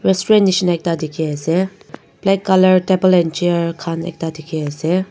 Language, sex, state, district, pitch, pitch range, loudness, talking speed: Nagamese, female, Nagaland, Dimapur, 175 Hz, 165-190 Hz, -17 LUFS, 165 wpm